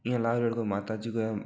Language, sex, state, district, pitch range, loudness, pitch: Marwari, male, Rajasthan, Nagaur, 110-115 Hz, -30 LUFS, 115 Hz